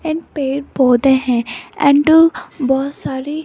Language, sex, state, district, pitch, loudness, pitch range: Hindi, female, Rajasthan, Jaipur, 275 Hz, -15 LUFS, 260-305 Hz